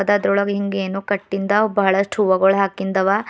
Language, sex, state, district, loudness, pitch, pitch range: Kannada, female, Karnataka, Bidar, -18 LUFS, 195 Hz, 195-205 Hz